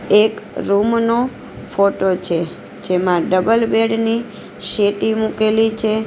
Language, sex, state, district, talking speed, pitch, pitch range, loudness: Gujarati, female, Gujarat, Valsad, 120 wpm, 215 Hz, 195-225 Hz, -17 LUFS